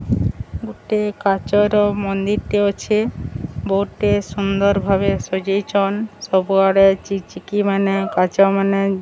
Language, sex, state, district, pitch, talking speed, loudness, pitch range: Odia, male, Odisha, Sambalpur, 195 Hz, 105 wpm, -18 LUFS, 190-205 Hz